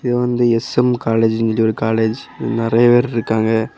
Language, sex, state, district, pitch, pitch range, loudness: Tamil, male, Tamil Nadu, Kanyakumari, 115 Hz, 110-120 Hz, -16 LUFS